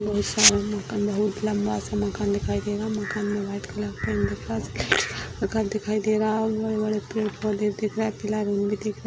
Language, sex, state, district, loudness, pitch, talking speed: Hindi, female, Bihar, Jamui, -25 LUFS, 205 Hz, 180 wpm